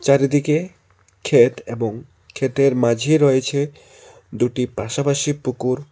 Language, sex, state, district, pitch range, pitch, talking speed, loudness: Bengali, male, Tripura, West Tripura, 120-145 Hz, 135 Hz, 90 wpm, -19 LUFS